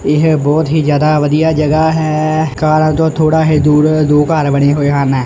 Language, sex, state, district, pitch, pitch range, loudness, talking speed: Punjabi, male, Punjab, Kapurthala, 155 Hz, 150-155 Hz, -11 LUFS, 195 wpm